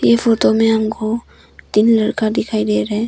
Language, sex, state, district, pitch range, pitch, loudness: Hindi, female, Arunachal Pradesh, Longding, 210-225 Hz, 220 Hz, -16 LUFS